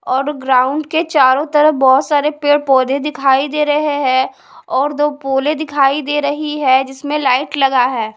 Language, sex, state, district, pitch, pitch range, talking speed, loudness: Hindi, female, Punjab, Pathankot, 285 Hz, 265-295 Hz, 175 wpm, -14 LUFS